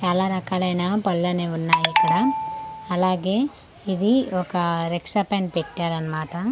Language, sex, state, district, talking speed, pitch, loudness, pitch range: Telugu, female, Andhra Pradesh, Manyam, 75 wpm, 185 Hz, -22 LUFS, 175-205 Hz